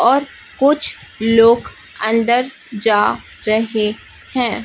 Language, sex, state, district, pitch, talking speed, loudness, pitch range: Hindi, female, Chhattisgarh, Raipur, 230 Hz, 90 wpm, -16 LUFS, 220-255 Hz